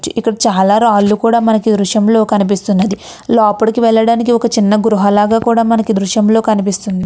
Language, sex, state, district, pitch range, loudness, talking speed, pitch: Telugu, female, Andhra Pradesh, Chittoor, 205-230 Hz, -12 LUFS, 180 wpm, 220 Hz